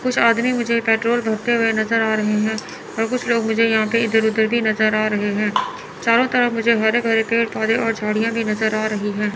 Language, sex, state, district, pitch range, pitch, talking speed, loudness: Hindi, male, Chandigarh, Chandigarh, 220-235 Hz, 225 Hz, 220 wpm, -18 LUFS